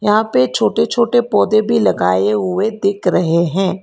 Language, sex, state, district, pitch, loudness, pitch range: Hindi, female, Karnataka, Bangalore, 200 Hz, -15 LUFS, 175-215 Hz